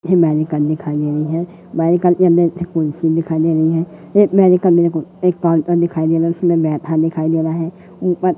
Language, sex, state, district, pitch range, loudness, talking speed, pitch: Hindi, female, Madhya Pradesh, Katni, 160-175 Hz, -16 LUFS, 230 wpm, 165 Hz